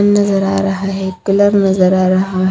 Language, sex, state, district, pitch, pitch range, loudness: Hindi, female, Haryana, Rohtak, 195 Hz, 185-195 Hz, -13 LUFS